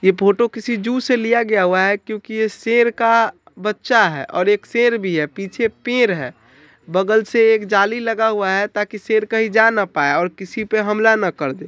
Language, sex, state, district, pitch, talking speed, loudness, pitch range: Hindi, male, Bihar, Sitamarhi, 215 Hz, 205 wpm, -17 LUFS, 195-230 Hz